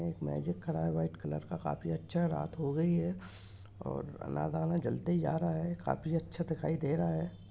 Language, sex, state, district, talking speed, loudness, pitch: Hindi, male, Maharashtra, Dhule, 210 wpm, -35 LUFS, 150 Hz